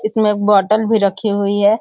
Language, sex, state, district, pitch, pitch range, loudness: Hindi, female, Bihar, Sitamarhi, 210 Hz, 200-215 Hz, -15 LUFS